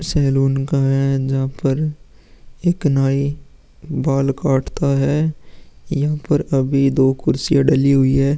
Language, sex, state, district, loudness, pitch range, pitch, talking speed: Hindi, male, Uttar Pradesh, Muzaffarnagar, -18 LUFS, 135-145 Hz, 135 Hz, 130 wpm